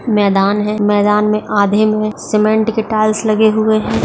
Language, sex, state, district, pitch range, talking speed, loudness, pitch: Hindi, female, Bihar, Saharsa, 210-215 Hz, 195 wpm, -14 LUFS, 215 Hz